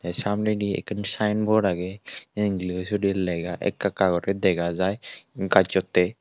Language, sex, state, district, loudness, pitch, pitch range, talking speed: Chakma, male, Tripura, Unakoti, -24 LUFS, 100 Hz, 90-105 Hz, 115 wpm